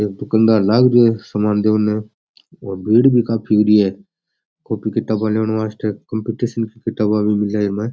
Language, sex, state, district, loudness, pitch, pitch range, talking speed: Rajasthani, male, Rajasthan, Nagaur, -17 LUFS, 110 Hz, 105-115 Hz, 195 wpm